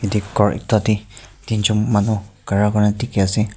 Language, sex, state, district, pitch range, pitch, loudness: Nagamese, male, Nagaland, Kohima, 105-110 Hz, 105 Hz, -19 LUFS